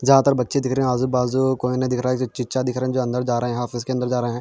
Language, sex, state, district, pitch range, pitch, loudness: Hindi, male, Bihar, Patna, 125-130 Hz, 125 Hz, -21 LUFS